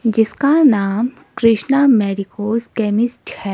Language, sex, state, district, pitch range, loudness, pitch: Hindi, female, Himachal Pradesh, Shimla, 210-265 Hz, -16 LUFS, 230 Hz